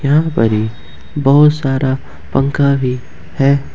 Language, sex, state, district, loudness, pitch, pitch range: Hindi, male, Jharkhand, Ranchi, -14 LUFS, 135 Hz, 125-140 Hz